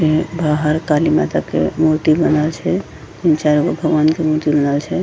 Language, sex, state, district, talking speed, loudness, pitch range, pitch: Angika, female, Bihar, Bhagalpur, 180 wpm, -16 LUFS, 150-160 Hz, 155 Hz